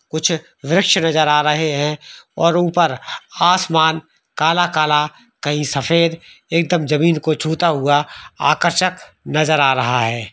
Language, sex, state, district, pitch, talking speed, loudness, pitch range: Hindi, male, Jharkhand, Sahebganj, 160 Hz, 130 wpm, -16 LUFS, 150-170 Hz